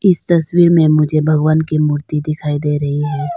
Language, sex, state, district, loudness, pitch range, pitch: Hindi, female, Arunachal Pradesh, Longding, -14 LUFS, 150-160 Hz, 155 Hz